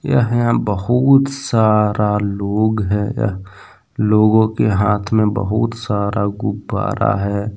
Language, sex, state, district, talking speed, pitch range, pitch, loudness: Hindi, male, Jharkhand, Deoghar, 105 wpm, 100-110 Hz, 105 Hz, -17 LUFS